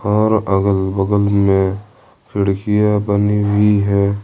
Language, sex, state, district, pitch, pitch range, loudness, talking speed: Hindi, male, Jharkhand, Ranchi, 100 Hz, 100-105 Hz, -15 LUFS, 125 wpm